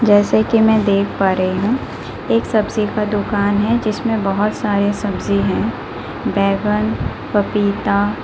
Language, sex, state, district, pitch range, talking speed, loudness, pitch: Hindi, female, Delhi, New Delhi, 200-215 Hz, 130 wpm, -17 LUFS, 205 Hz